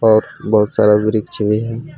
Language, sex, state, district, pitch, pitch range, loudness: Hindi, male, Jharkhand, Palamu, 110 Hz, 105-115 Hz, -15 LUFS